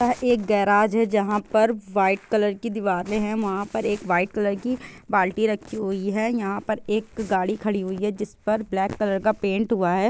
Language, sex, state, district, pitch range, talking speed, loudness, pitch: Hindi, female, Chhattisgarh, Bilaspur, 195-220 Hz, 215 wpm, -23 LUFS, 210 Hz